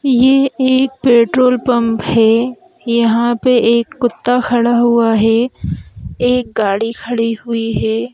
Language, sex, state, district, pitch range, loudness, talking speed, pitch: Hindi, female, Madhya Pradesh, Bhopal, 230-250 Hz, -14 LUFS, 125 wpm, 235 Hz